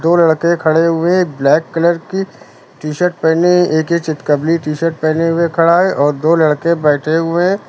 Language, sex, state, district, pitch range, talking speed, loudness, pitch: Hindi, male, Uttar Pradesh, Lucknow, 155-170 Hz, 180 wpm, -13 LUFS, 165 Hz